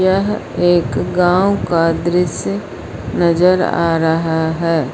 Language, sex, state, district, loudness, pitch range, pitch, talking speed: Hindi, female, Uttar Pradesh, Lucknow, -15 LUFS, 160-180 Hz, 170 Hz, 110 wpm